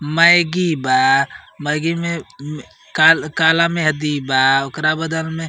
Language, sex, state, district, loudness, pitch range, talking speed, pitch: Bhojpuri, male, Uttar Pradesh, Ghazipur, -16 LUFS, 145-165 Hz, 110 wpm, 155 Hz